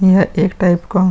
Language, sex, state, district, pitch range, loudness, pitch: Hindi, male, Bihar, Vaishali, 185-195 Hz, -14 LUFS, 190 Hz